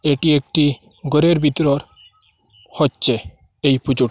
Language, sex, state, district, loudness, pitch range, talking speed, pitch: Bengali, male, Assam, Hailakandi, -17 LUFS, 110-150 Hz, 100 wpm, 135 Hz